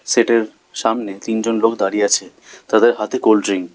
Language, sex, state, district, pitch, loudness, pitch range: Bengali, male, West Bengal, Alipurduar, 110 Hz, -17 LUFS, 100-115 Hz